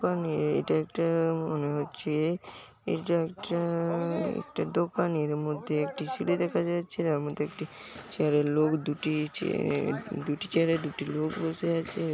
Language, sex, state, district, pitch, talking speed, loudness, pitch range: Bengali, male, West Bengal, Paschim Medinipur, 160 Hz, 130 wpm, -30 LUFS, 150-170 Hz